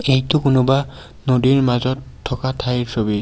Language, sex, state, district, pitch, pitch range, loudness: Assamese, male, Assam, Kamrup Metropolitan, 130 Hz, 125-135 Hz, -18 LUFS